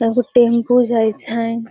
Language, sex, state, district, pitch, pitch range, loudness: Magahi, female, Bihar, Gaya, 235 Hz, 230-245 Hz, -16 LUFS